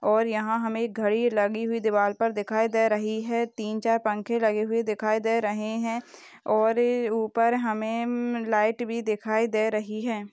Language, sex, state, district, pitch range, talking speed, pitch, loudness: Hindi, female, Rajasthan, Nagaur, 215-230 Hz, 175 wpm, 225 Hz, -26 LUFS